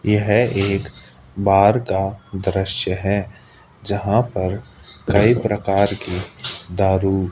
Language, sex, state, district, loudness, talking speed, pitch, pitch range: Hindi, male, Rajasthan, Jaipur, -19 LUFS, 100 wpm, 100 Hz, 95-105 Hz